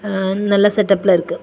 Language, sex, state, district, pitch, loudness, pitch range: Tamil, female, Tamil Nadu, Kanyakumari, 200 Hz, -15 LUFS, 190-205 Hz